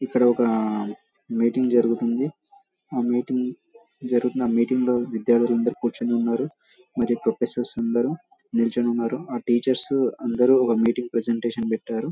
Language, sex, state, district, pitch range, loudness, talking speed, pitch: Telugu, male, Telangana, Karimnagar, 115-130 Hz, -23 LUFS, 125 wpm, 120 Hz